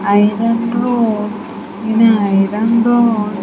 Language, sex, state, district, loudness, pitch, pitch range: English, female, Andhra Pradesh, Sri Satya Sai, -14 LUFS, 220 Hz, 210-230 Hz